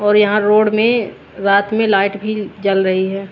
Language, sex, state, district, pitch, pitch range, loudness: Hindi, female, Haryana, Jhajjar, 205 Hz, 195-215 Hz, -15 LUFS